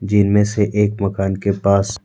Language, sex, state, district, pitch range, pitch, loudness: Hindi, male, Jharkhand, Deoghar, 100-105 Hz, 100 Hz, -17 LUFS